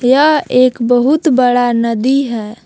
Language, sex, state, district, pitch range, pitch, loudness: Hindi, female, Jharkhand, Palamu, 240-275 Hz, 250 Hz, -12 LUFS